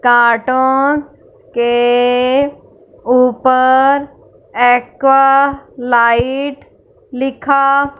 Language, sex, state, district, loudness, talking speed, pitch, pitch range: Hindi, female, Punjab, Fazilka, -12 LUFS, 45 wpm, 265 Hz, 245-280 Hz